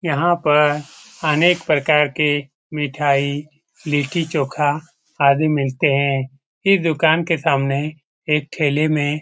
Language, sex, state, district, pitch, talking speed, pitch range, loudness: Hindi, male, Bihar, Jamui, 150 Hz, 115 wpm, 140-160 Hz, -18 LUFS